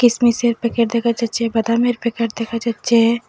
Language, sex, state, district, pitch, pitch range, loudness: Bengali, female, Assam, Hailakandi, 235 Hz, 230-235 Hz, -18 LUFS